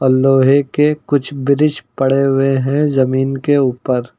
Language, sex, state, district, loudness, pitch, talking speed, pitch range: Hindi, male, Uttar Pradesh, Lucknow, -14 LUFS, 135 Hz, 145 wpm, 130-145 Hz